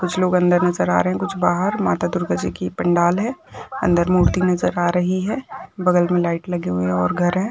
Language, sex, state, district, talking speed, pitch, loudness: Hindi, female, Maharashtra, Nagpur, 230 wpm, 175 Hz, -19 LUFS